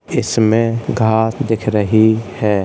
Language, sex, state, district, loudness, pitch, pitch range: Hindi, male, Uttar Pradesh, Hamirpur, -15 LUFS, 110 Hz, 110-115 Hz